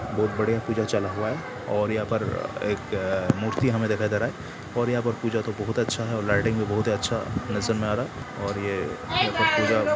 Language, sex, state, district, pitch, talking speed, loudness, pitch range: Hindi, male, Bihar, Sitamarhi, 110 Hz, 210 wpm, -26 LUFS, 105-115 Hz